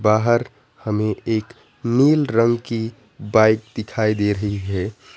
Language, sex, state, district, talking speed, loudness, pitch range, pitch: Hindi, male, West Bengal, Alipurduar, 130 wpm, -20 LUFS, 105-120 Hz, 110 Hz